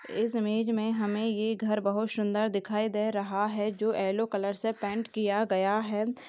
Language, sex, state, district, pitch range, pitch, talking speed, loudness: Hindi, female, Maharashtra, Sindhudurg, 205-220 Hz, 215 Hz, 190 wpm, -29 LUFS